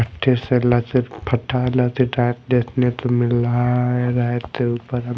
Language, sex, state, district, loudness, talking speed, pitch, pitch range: Hindi, male, Odisha, Malkangiri, -19 LUFS, 105 wpm, 125 Hz, 120-125 Hz